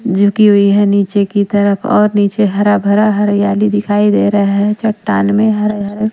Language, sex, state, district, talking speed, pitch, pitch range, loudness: Hindi, female, Maharashtra, Washim, 175 wpm, 205 Hz, 200-210 Hz, -12 LUFS